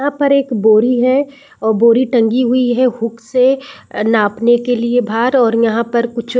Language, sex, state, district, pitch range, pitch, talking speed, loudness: Hindi, female, Chhattisgarh, Raigarh, 230-255 Hz, 240 Hz, 195 wpm, -14 LUFS